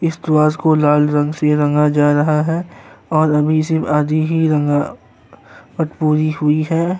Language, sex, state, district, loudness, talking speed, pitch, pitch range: Hindi, male, Uttar Pradesh, Jyotiba Phule Nagar, -16 LUFS, 165 wpm, 155 Hz, 150-160 Hz